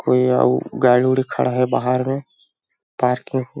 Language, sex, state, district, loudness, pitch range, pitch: Hindi, male, Chhattisgarh, Balrampur, -19 LUFS, 125-130 Hz, 125 Hz